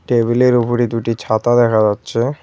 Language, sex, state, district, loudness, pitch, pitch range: Bengali, male, West Bengal, Cooch Behar, -15 LUFS, 120 Hz, 115-120 Hz